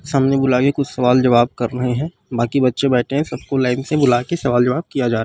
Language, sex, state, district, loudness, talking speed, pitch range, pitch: Chhattisgarhi, male, Chhattisgarh, Rajnandgaon, -17 LUFS, 250 wpm, 125-140 Hz, 125 Hz